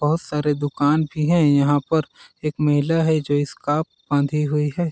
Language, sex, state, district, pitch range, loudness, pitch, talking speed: Hindi, male, Chhattisgarh, Balrampur, 145-155 Hz, -20 LUFS, 150 Hz, 185 wpm